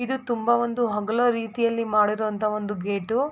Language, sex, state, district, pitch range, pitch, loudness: Kannada, female, Karnataka, Mysore, 210-240 Hz, 230 Hz, -24 LUFS